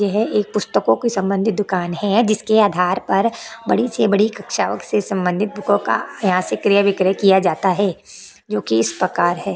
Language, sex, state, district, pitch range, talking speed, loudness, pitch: Hindi, female, Chhattisgarh, Korba, 180-210 Hz, 170 wpm, -18 LUFS, 200 Hz